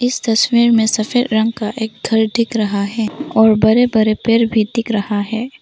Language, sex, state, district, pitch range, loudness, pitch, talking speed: Hindi, female, Arunachal Pradesh, Papum Pare, 215-230 Hz, -15 LUFS, 225 Hz, 205 wpm